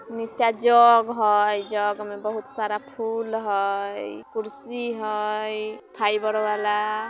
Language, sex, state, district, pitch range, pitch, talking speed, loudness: Bajjika, female, Bihar, Vaishali, 210-230 Hz, 215 Hz, 110 wpm, -23 LUFS